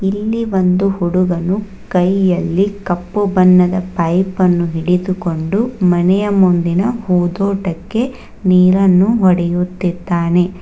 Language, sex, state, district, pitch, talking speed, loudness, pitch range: Kannada, female, Karnataka, Bangalore, 185 Hz, 80 wpm, -15 LUFS, 175-195 Hz